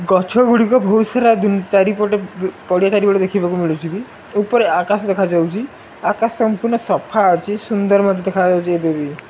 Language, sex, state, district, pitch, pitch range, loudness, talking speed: Odia, male, Odisha, Malkangiri, 200 Hz, 185-220 Hz, -16 LUFS, 135 wpm